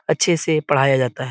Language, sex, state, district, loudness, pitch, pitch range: Hindi, male, Bihar, Supaul, -18 LUFS, 145 Hz, 130-155 Hz